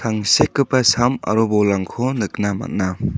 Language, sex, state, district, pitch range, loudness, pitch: Garo, male, Meghalaya, South Garo Hills, 100-130 Hz, -18 LUFS, 110 Hz